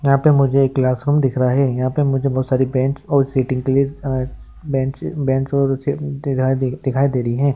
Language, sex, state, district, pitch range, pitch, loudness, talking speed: Hindi, male, Maharashtra, Sindhudurg, 130-140 Hz, 135 Hz, -18 LUFS, 180 wpm